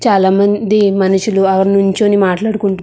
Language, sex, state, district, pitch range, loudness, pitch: Telugu, female, Andhra Pradesh, Chittoor, 195-210 Hz, -12 LUFS, 200 Hz